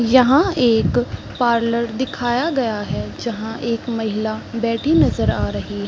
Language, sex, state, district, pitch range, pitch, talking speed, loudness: Hindi, female, Chhattisgarh, Raigarh, 210-245 Hz, 230 Hz, 120 wpm, -19 LUFS